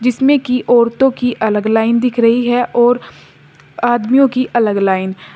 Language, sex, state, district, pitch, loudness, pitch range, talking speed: Hindi, female, Uttar Pradesh, Shamli, 240 Hz, -13 LUFS, 225-250 Hz, 170 wpm